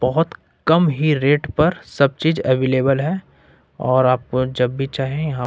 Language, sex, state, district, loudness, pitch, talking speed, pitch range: Hindi, male, Jharkhand, Ranchi, -19 LUFS, 135 Hz, 155 wpm, 130-155 Hz